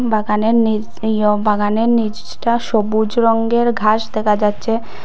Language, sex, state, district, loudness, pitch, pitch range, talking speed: Bengali, female, Assam, Hailakandi, -16 LUFS, 220 Hz, 210-230 Hz, 120 wpm